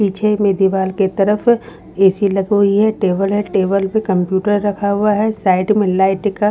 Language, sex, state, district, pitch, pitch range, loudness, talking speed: Hindi, female, Haryana, Rohtak, 200 Hz, 190-210 Hz, -15 LUFS, 200 wpm